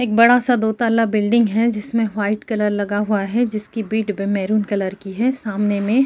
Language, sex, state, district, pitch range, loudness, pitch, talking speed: Hindi, female, Chhattisgarh, Kabirdham, 205-230 Hz, -19 LUFS, 215 Hz, 240 wpm